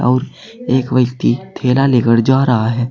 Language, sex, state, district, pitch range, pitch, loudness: Hindi, male, Uttar Pradesh, Saharanpur, 120-130 Hz, 125 Hz, -14 LUFS